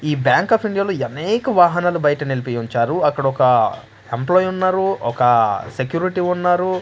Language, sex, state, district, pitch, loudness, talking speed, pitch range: Telugu, male, Andhra Pradesh, Manyam, 165 Hz, -18 LUFS, 130 wpm, 125-185 Hz